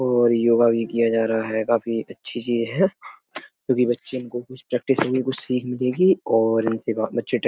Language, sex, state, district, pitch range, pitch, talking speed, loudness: Hindi, male, Uttar Pradesh, Etah, 115-125 Hz, 120 Hz, 175 wpm, -22 LUFS